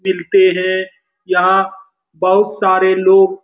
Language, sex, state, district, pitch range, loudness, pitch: Hindi, male, Bihar, Lakhisarai, 185-195 Hz, -13 LUFS, 190 Hz